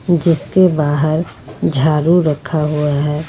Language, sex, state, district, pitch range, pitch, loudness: Hindi, female, Jharkhand, Ranchi, 150-170 Hz, 155 Hz, -15 LUFS